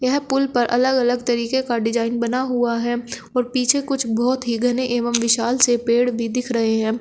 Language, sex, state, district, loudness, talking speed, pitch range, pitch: Hindi, female, Uttar Pradesh, Shamli, -20 LUFS, 215 wpm, 235-255 Hz, 245 Hz